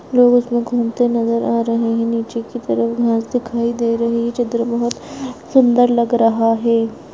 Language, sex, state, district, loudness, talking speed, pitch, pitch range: Hindi, female, Rajasthan, Nagaur, -17 LUFS, 175 wpm, 235 Hz, 230-245 Hz